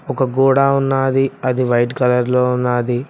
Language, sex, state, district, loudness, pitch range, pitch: Telugu, male, Telangana, Mahabubabad, -16 LUFS, 125-135 Hz, 130 Hz